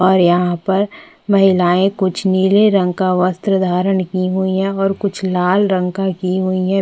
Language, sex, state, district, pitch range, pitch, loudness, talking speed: Hindi, female, Chhattisgarh, Bastar, 185-195 Hz, 190 Hz, -15 LUFS, 185 wpm